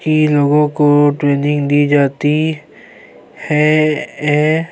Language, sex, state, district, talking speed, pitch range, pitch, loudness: Urdu, male, Bihar, Saharsa, 100 wpm, 145-155 Hz, 150 Hz, -13 LUFS